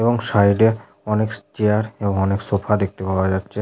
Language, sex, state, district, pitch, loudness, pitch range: Bengali, male, West Bengal, Jhargram, 100 Hz, -20 LUFS, 100-110 Hz